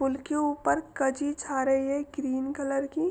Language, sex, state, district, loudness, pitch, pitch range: Hindi, female, Uttar Pradesh, Jalaun, -29 LUFS, 280 Hz, 270-295 Hz